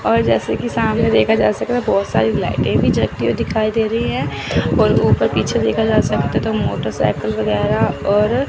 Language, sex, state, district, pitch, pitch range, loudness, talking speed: Hindi, female, Chandigarh, Chandigarh, 220 Hz, 210-240 Hz, -17 LUFS, 190 wpm